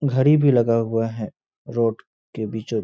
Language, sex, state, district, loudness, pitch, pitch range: Hindi, male, Uttar Pradesh, Etah, -21 LUFS, 115 Hz, 110-130 Hz